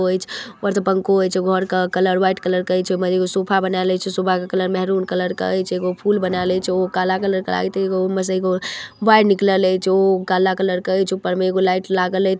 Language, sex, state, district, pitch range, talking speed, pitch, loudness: Maithili, female, Bihar, Darbhanga, 185-190 Hz, 175 wpm, 185 Hz, -19 LUFS